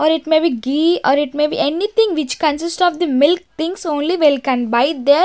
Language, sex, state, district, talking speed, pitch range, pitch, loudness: English, female, Maharashtra, Gondia, 240 wpm, 285-340 Hz, 310 Hz, -16 LUFS